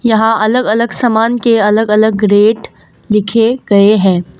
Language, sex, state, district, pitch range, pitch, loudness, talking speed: Hindi, female, Assam, Kamrup Metropolitan, 210-230 Hz, 220 Hz, -11 LUFS, 165 wpm